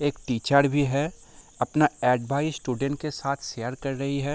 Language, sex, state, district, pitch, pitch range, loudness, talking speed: Hindi, male, Bihar, Sitamarhi, 140 Hz, 125-145 Hz, -26 LUFS, 180 wpm